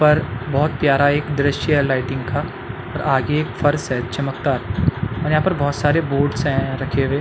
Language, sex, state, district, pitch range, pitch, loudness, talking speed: Hindi, male, Uttarakhand, Tehri Garhwal, 130-150 Hz, 140 Hz, -19 LUFS, 185 wpm